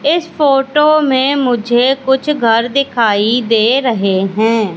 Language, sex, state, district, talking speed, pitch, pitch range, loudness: Hindi, female, Madhya Pradesh, Katni, 125 wpm, 250 Hz, 225-275 Hz, -12 LUFS